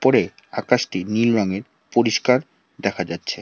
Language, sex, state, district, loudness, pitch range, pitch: Bengali, male, West Bengal, Alipurduar, -21 LUFS, 100-120 Hz, 110 Hz